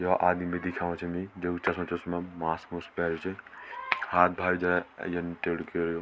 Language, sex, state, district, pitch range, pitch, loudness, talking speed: Garhwali, male, Uttarakhand, Tehri Garhwal, 85-90 Hz, 90 Hz, -30 LUFS, 170 wpm